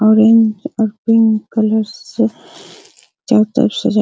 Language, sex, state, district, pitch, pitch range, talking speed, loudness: Hindi, female, Bihar, Araria, 220 Hz, 215-230 Hz, 150 wpm, -14 LUFS